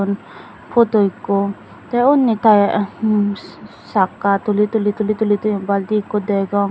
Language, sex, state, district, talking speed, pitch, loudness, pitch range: Chakma, female, Tripura, Dhalai, 135 wpm, 205 Hz, -17 LUFS, 200-215 Hz